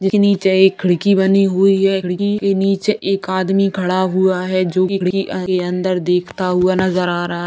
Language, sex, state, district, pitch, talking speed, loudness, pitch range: Hindi, female, Bihar, Saran, 185 Hz, 215 wpm, -16 LUFS, 180-195 Hz